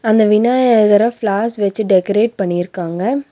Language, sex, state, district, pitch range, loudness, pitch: Tamil, female, Tamil Nadu, Nilgiris, 195-230 Hz, -14 LUFS, 215 Hz